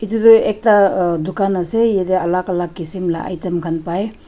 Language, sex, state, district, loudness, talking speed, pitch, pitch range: Nagamese, female, Nagaland, Dimapur, -16 LUFS, 210 wpm, 185 Hz, 175-205 Hz